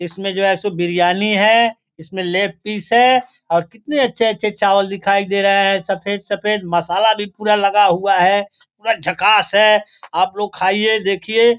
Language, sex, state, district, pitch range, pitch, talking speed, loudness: Hindi, male, Bihar, Gopalganj, 195-220 Hz, 200 Hz, 175 wpm, -16 LUFS